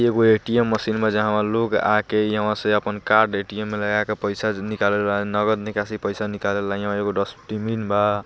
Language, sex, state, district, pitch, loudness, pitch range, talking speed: Bhojpuri, male, Bihar, East Champaran, 105 Hz, -22 LUFS, 105-110 Hz, 205 wpm